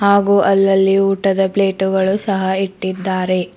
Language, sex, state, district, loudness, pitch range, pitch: Kannada, female, Karnataka, Bidar, -15 LUFS, 190-195 Hz, 195 Hz